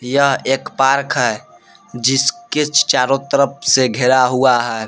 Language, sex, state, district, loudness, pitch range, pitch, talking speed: Hindi, male, Jharkhand, Palamu, -15 LUFS, 125-140 Hz, 135 Hz, 135 wpm